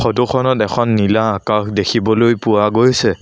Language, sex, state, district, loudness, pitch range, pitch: Assamese, male, Assam, Sonitpur, -14 LUFS, 105-120 Hz, 110 Hz